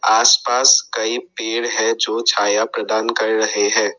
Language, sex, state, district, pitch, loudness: Hindi, male, Assam, Sonitpur, 120 Hz, -16 LUFS